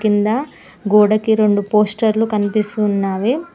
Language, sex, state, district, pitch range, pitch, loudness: Telugu, female, Telangana, Mahabubabad, 205-220 Hz, 210 Hz, -16 LUFS